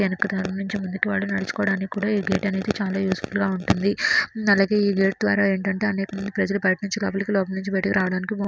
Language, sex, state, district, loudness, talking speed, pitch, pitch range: Telugu, female, Andhra Pradesh, Srikakulam, -23 LUFS, 205 wpm, 195 Hz, 195-200 Hz